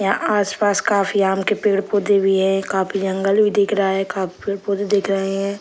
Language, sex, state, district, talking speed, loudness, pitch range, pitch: Hindi, male, Bihar, Sitamarhi, 215 wpm, -19 LUFS, 195-205 Hz, 200 Hz